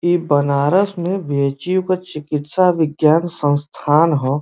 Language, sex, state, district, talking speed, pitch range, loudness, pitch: Bhojpuri, male, Uttar Pradesh, Varanasi, 120 wpm, 145-180 Hz, -17 LUFS, 155 Hz